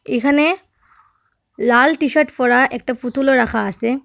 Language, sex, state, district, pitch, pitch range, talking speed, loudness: Bengali, female, Assam, Hailakandi, 265 Hz, 245-305 Hz, 120 wpm, -16 LUFS